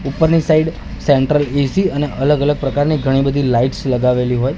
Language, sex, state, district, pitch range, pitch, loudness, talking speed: Gujarati, male, Gujarat, Gandhinagar, 135-150 Hz, 140 Hz, -15 LUFS, 170 wpm